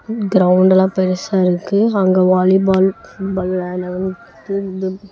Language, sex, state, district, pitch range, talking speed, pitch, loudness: Tamil, female, Tamil Nadu, Namakkal, 185-195 Hz, 70 wpm, 190 Hz, -16 LUFS